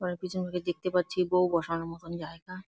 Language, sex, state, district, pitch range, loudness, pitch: Bengali, female, West Bengal, Jalpaiguri, 170-185 Hz, -31 LUFS, 180 Hz